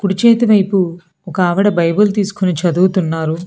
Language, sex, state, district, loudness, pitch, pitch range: Telugu, female, Telangana, Hyderabad, -14 LUFS, 185 Hz, 175-200 Hz